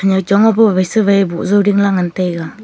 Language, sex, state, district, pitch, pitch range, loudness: Wancho, female, Arunachal Pradesh, Longding, 195 Hz, 185-205 Hz, -13 LUFS